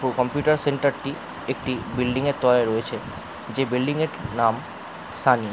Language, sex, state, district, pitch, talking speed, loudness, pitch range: Bengali, male, West Bengal, Jalpaiguri, 125 Hz, 140 wpm, -24 LUFS, 115-140 Hz